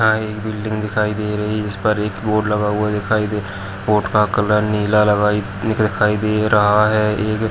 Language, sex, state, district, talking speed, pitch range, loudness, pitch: Hindi, female, Uttar Pradesh, Varanasi, 225 wpm, 105-110 Hz, -18 LUFS, 105 Hz